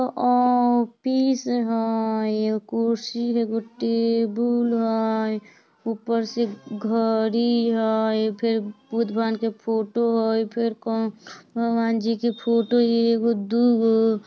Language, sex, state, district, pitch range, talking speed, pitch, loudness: Bajjika, female, Bihar, Vaishali, 220-235 Hz, 130 wpm, 230 Hz, -23 LUFS